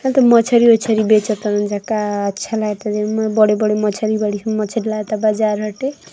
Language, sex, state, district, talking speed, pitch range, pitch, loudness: Hindi, female, Uttar Pradesh, Ghazipur, 165 wpm, 210-220 Hz, 215 Hz, -16 LUFS